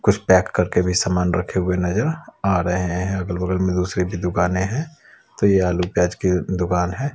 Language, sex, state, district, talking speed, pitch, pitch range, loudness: Hindi, male, Chhattisgarh, Raipur, 210 wpm, 90 Hz, 90-95 Hz, -20 LUFS